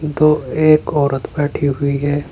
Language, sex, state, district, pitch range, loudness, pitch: Hindi, male, Uttar Pradesh, Saharanpur, 140-150 Hz, -16 LUFS, 145 Hz